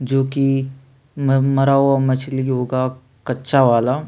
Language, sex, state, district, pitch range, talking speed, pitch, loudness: Hindi, male, Chhattisgarh, Sukma, 130-135 Hz, 115 wpm, 135 Hz, -18 LUFS